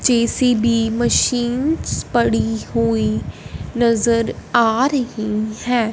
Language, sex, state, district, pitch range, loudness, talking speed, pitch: Hindi, female, Punjab, Fazilka, 210-240 Hz, -18 LUFS, 80 wpm, 230 Hz